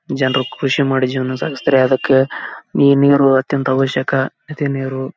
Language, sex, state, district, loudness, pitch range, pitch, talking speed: Kannada, male, Karnataka, Bellary, -16 LUFS, 130-140 Hz, 135 Hz, 115 wpm